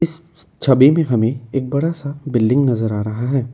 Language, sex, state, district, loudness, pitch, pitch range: Hindi, male, Assam, Kamrup Metropolitan, -17 LUFS, 135 Hz, 120-150 Hz